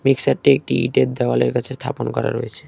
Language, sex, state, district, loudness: Bengali, male, West Bengal, Cooch Behar, -19 LUFS